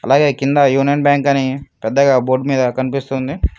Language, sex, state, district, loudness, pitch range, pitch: Telugu, male, Telangana, Mahabubabad, -15 LUFS, 130-140 Hz, 135 Hz